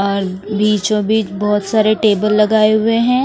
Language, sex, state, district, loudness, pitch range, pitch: Hindi, female, Haryana, Rohtak, -14 LUFS, 205-220 Hz, 210 Hz